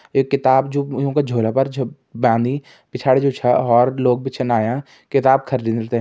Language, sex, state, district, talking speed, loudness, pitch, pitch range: Garhwali, male, Uttarakhand, Tehri Garhwal, 200 wpm, -18 LUFS, 130 Hz, 120-135 Hz